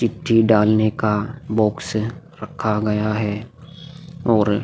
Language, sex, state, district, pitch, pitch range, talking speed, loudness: Hindi, male, Chhattisgarh, Korba, 110 Hz, 105-120 Hz, 115 wpm, -20 LUFS